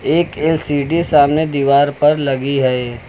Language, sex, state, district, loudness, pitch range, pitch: Hindi, male, Uttar Pradesh, Lucknow, -15 LUFS, 140-155 Hz, 145 Hz